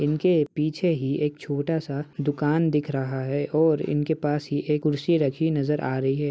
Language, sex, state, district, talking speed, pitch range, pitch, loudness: Hindi, male, Uttar Pradesh, Ghazipur, 200 wpm, 145-155 Hz, 150 Hz, -25 LUFS